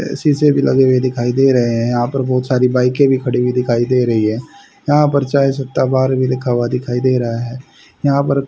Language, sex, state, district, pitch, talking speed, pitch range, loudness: Hindi, male, Haryana, Rohtak, 130 Hz, 255 wpm, 125-135 Hz, -15 LUFS